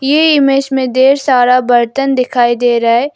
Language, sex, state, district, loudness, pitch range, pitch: Hindi, female, Arunachal Pradesh, Lower Dibang Valley, -11 LUFS, 245-275 Hz, 260 Hz